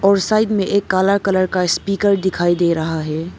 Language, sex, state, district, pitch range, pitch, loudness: Hindi, female, Arunachal Pradesh, Papum Pare, 175-200 Hz, 190 Hz, -17 LUFS